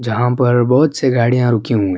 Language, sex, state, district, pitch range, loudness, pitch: Urdu, male, Uttar Pradesh, Budaun, 115-125 Hz, -14 LUFS, 120 Hz